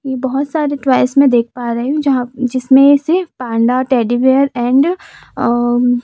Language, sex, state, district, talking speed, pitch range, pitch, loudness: Hindi, female, Chhattisgarh, Raipur, 170 wpm, 245-280 Hz, 260 Hz, -14 LUFS